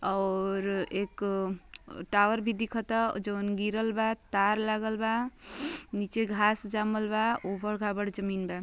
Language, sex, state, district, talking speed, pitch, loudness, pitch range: Bhojpuri, female, Uttar Pradesh, Ghazipur, 125 wpm, 210 Hz, -30 LUFS, 195-225 Hz